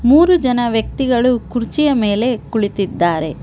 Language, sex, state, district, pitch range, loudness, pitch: Kannada, female, Karnataka, Bangalore, 205-255 Hz, -16 LUFS, 240 Hz